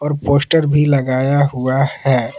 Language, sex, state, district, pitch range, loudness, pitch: Hindi, male, Jharkhand, Palamu, 130-145 Hz, -15 LUFS, 140 Hz